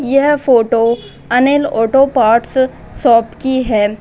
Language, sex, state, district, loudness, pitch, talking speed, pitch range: Hindi, female, Bihar, Muzaffarpur, -13 LUFS, 250 Hz, 120 wpm, 230-270 Hz